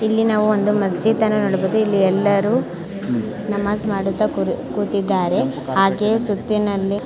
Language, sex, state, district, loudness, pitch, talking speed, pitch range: Kannada, female, Karnataka, Mysore, -19 LUFS, 205 Hz, 120 wpm, 195-215 Hz